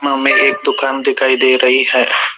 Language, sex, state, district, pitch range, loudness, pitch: Hindi, male, Rajasthan, Jaipur, 130-145 Hz, -12 LUFS, 135 Hz